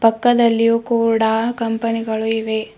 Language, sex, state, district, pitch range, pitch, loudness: Kannada, female, Karnataka, Bidar, 225-230 Hz, 230 Hz, -17 LUFS